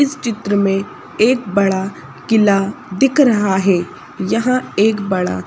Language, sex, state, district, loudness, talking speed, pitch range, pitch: Hindi, female, Madhya Pradesh, Bhopal, -16 LUFS, 130 wpm, 195-235 Hz, 205 Hz